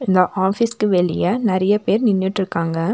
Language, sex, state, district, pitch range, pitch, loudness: Tamil, female, Tamil Nadu, Nilgiris, 185-210 Hz, 190 Hz, -18 LUFS